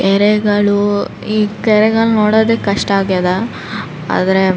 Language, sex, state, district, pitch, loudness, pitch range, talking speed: Kannada, female, Karnataka, Raichur, 205 Hz, -14 LUFS, 195-215 Hz, 105 wpm